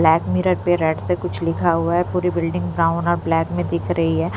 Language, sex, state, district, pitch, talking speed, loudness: Hindi, female, Punjab, Pathankot, 160 Hz, 245 wpm, -20 LUFS